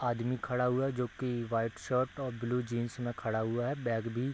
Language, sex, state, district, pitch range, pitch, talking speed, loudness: Hindi, male, Bihar, Gopalganj, 120-125 Hz, 120 Hz, 265 wpm, -34 LUFS